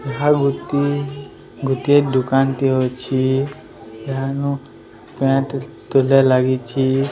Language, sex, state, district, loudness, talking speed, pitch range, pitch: Odia, male, Odisha, Sambalpur, -18 LUFS, 60 wpm, 130-140 Hz, 135 Hz